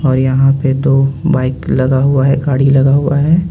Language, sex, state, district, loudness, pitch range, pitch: Hindi, male, Jharkhand, Ranchi, -12 LUFS, 135-140 Hz, 135 Hz